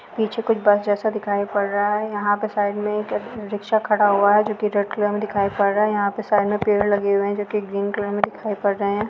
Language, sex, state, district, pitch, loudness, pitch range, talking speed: Hindi, female, Bihar, Araria, 205 Hz, -21 LUFS, 205-210 Hz, 285 wpm